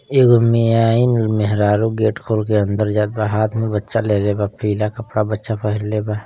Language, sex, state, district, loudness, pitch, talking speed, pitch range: Bhojpuri, male, Uttar Pradesh, Ghazipur, -17 LUFS, 110 Hz, 175 wpm, 105-115 Hz